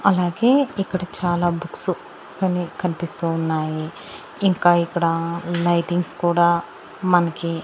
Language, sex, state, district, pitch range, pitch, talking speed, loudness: Telugu, female, Andhra Pradesh, Annamaya, 170-180 Hz, 175 Hz, 95 wpm, -21 LUFS